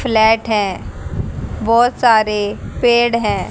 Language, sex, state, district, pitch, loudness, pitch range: Hindi, female, Haryana, Jhajjar, 225 Hz, -15 LUFS, 210-235 Hz